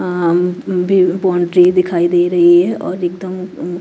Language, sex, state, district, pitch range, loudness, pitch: Hindi, female, Chhattisgarh, Raipur, 175-185 Hz, -14 LUFS, 180 Hz